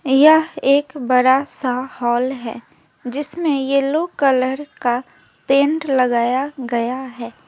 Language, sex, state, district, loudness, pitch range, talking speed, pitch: Hindi, female, West Bengal, Alipurduar, -18 LUFS, 250-285 Hz, 110 wpm, 265 Hz